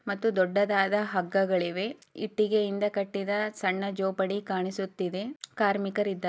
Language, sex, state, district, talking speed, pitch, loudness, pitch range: Kannada, female, Karnataka, Chamarajanagar, 85 wpm, 200 Hz, -29 LUFS, 190-210 Hz